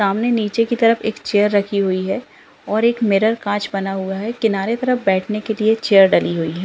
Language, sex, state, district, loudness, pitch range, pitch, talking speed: Hindi, female, Uttarakhand, Uttarkashi, -18 LUFS, 195-230 Hz, 210 Hz, 225 wpm